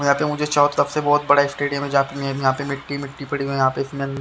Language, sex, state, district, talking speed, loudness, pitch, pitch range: Hindi, male, Haryana, Charkhi Dadri, 270 wpm, -20 LUFS, 140 Hz, 140-145 Hz